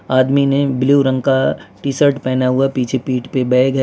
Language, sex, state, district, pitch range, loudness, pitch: Hindi, male, Gujarat, Valsad, 130-140 Hz, -16 LUFS, 130 Hz